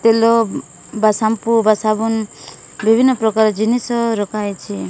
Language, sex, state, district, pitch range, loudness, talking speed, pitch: Odia, female, Odisha, Malkangiri, 210-225 Hz, -16 LUFS, 110 wpm, 220 Hz